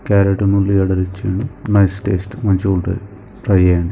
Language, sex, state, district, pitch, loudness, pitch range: Telugu, male, Telangana, Karimnagar, 100 Hz, -16 LUFS, 95-100 Hz